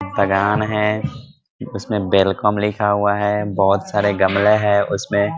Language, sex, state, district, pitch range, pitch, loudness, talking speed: Hindi, male, Bihar, Muzaffarpur, 100-105 Hz, 105 Hz, -17 LUFS, 165 wpm